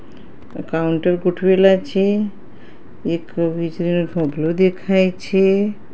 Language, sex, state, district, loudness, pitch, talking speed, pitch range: Gujarati, female, Gujarat, Gandhinagar, -18 LUFS, 185 Hz, 80 wpm, 170-195 Hz